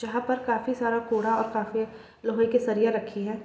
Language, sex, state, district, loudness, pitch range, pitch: Hindi, female, Bihar, East Champaran, -27 LUFS, 220-230 Hz, 225 Hz